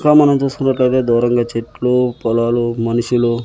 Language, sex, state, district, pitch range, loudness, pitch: Telugu, male, Andhra Pradesh, Annamaya, 120-130 Hz, -15 LUFS, 120 Hz